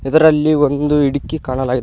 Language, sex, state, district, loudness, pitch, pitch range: Kannada, male, Karnataka, Koppal, -15 LUFS, 145 Hz, 135-155 Hz